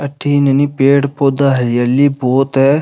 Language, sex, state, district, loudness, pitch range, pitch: Rajasthani, male, Rajasthan, Nagaur, -13 LUFS, 135-140 Hz, 140 Hz